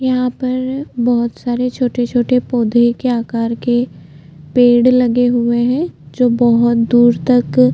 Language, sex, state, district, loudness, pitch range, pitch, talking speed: Hindi, female, Chhattisgarh, Jashpur, -14 LUFS, 235-250 Hz, 240 Hz, 145 wpm